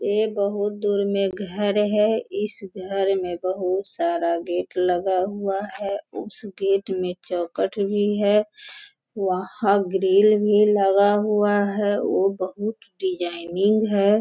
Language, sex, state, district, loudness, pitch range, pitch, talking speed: Hindi, female, Bihar, Sitamarhi, -22 LUFS, 190-210 Hz, 200 Hz, 130 wpm